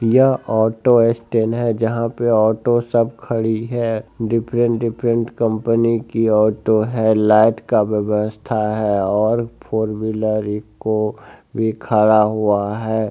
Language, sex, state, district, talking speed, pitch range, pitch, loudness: Hindi, male, Bihar, Saran, 130 wpm, 110-115 Hz, 110 Hz, -18 LUFS